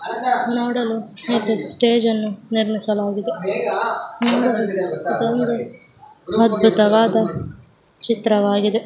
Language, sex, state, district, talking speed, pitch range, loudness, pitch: Kannada, female, Karnataka, Mysore, 40 wpm, 210-235 Hz, -19 LUFS, 225 Hz